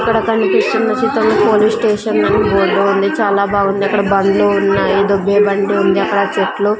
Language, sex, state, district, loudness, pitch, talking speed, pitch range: Telugu, female, Andhra Pradesh, Sri Satya Sai, -13 LUFS, 200 Hz, 175 wpm, 195-215 Hz